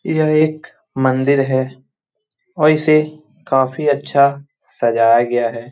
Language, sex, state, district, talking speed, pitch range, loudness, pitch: Hindi, male, Jharkhand, Jamtara, 115 wpm, 130-155 Hz, -16 LUFS, 140 Hz